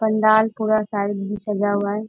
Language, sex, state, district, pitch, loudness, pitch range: Hindi, female, Bihar, Bhagalpur, 210 Hz, -20 LUFS, 205-215 Hz